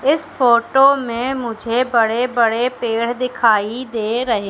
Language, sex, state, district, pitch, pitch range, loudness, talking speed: Hindi, female, Madhya Pradesh, Katni, 240 Hz, 230-255 Hz, -17 LUFS, 135 wpm